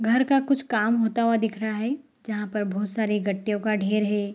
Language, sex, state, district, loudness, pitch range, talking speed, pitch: Hindi, female, Bihar, Saharsa, -25 LUFS, 210-235 Hz, 235 wpm, 220 Hz